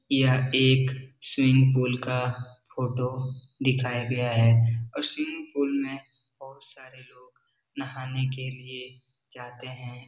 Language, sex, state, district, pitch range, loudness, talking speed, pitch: Hindi, male, Bihar, Jahanabad, 125-130 Hz, -26 LUFS, 130 wpm, 130 Hz